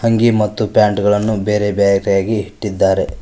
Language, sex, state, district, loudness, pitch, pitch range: Kannada, male, Karnataka, Koppal, -15 LUFS, 105 Hz, 100-110 Hz